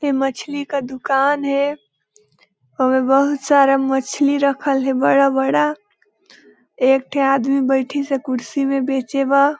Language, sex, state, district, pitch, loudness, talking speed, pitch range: Hindi, female, Chhattisgarh, Balrampur, 275 Hz, -18 LUFS, 125 wpm, 270-285 Hz